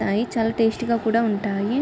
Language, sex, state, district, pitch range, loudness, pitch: Telugu, female, Andhra Pradesh, Srikakulam, 210-235 Hz, -22 LUFS, 225 Hz